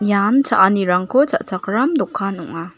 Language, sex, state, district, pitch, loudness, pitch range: Garo, female, Meghalaya, West Garo Hills, 200 Hz, -17 LUFS, 185-255 Hz